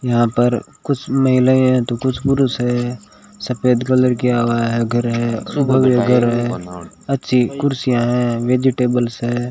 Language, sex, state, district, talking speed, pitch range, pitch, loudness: Hindi, male, Rajasthan, Bikaner, 140 wpm, 120-130 Hz, 125 Hz, -17 LUFS